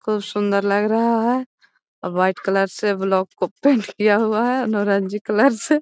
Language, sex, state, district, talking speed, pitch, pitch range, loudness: Magahi, female, Bihar, Gaya, 185 wpm, 210 Hz, 200-230 Hz, -19 LUFS